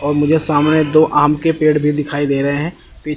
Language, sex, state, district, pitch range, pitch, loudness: Hindi, male, Chandigarh, Chandigarh, 145-155 Hz, 150 Hz, -14 LUFS